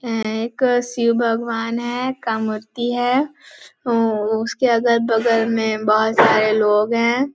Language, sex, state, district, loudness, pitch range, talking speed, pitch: Hindi, female, Chhattisgarh, Balrampur, -18 LUFS, 220-240 Hz, 145 wpm, 230 Hz